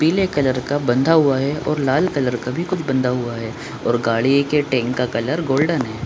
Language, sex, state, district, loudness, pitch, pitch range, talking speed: Hindi, male, Bihar, Supaul, -19 LUFS, 135 Hz, 125-150 Hz, 225 wpm